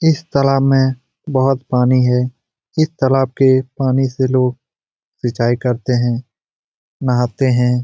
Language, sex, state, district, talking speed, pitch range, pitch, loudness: Hindi, male, Bihar, Jamui, 130 wpm, 125-135 Hz, 130 Hz, -16 LUFS